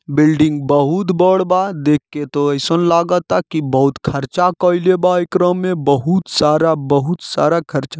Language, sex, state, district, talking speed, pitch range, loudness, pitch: Bhojpuri, male, Jharkhand, Sahebganj, 150 wpm, 145-180 Hz, -15 LUFS, 160 Hz